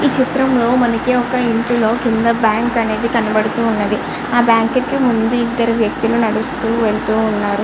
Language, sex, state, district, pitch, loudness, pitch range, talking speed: Telugu, male, Andhra Pradesh, Srikakulam, 230 Hz, -15 LUFS, 220-245 Hz, 155 wpm